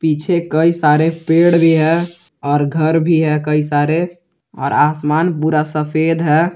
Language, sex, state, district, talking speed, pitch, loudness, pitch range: Hindi, male, Jharkhand, Garhwa, 155 wpm, 160 Hz, -14 LUFS, 150-170 Hz